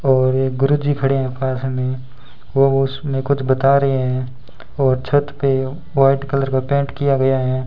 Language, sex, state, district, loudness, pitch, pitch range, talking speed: Hindi, male, Rajasthan, Bikaner, -18 LUFS, 135 Hz, 130-140 Hz, 180 wpm